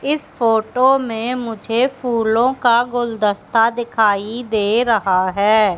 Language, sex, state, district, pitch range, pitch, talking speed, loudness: Hindi, female, Madhya Pradesh, Katni, 215-245 Hz, 230 Hz, 115 wpm, -17 LUFS